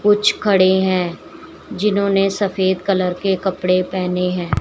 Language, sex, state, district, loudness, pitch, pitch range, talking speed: Hindi, female, Uttar Pradesh, Shamli, -17 LUFS, 190 Hz, 180-200 Hz, 130 wpm